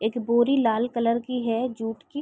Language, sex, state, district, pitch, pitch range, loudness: Hindi, female, Chhattisgarh, Raigarh, 235 Hz, 225-245 Hz, -24 LUFS